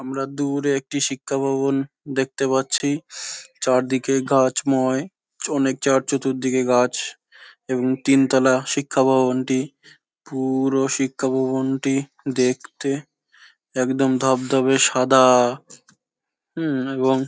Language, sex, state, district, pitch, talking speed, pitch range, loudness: Bengali, male, West Bengal, Jhargram, 135 Hz, 110 wpm, 130-135 Hz, -21 LUFS